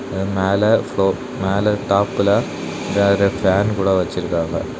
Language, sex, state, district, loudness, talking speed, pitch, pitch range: Tamil, male, Tamil Nadu, Kanyakumari, -18 LUFS, 115 wpm, 100 Hz, 95-100 Hz